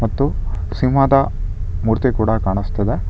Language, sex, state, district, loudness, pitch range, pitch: Kannada, male, Karnataka, Bangalore, -18 LUFS, 95-125 Hz, 100 Hz